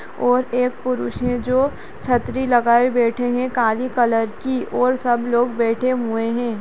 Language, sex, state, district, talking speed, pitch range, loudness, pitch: Hindi, female, Uttarakhand, Tehri Garhwal, 165 wpm, 230-250 Hz, -19 LUFS, 245 Hz